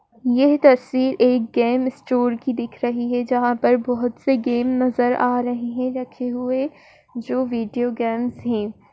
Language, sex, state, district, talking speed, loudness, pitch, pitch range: Hindi, female, Uttar Pradesh, Etah, 160 wpm, -20 LUFS, 245 Hz, 240-255 Hz